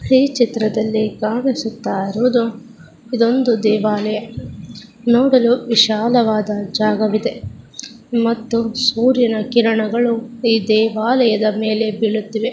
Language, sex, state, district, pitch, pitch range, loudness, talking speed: Kannada, female, Karnataka, Dakshina Kannada, 225 Hz, 215-240 Hz, -17 LUFS, 80 wpm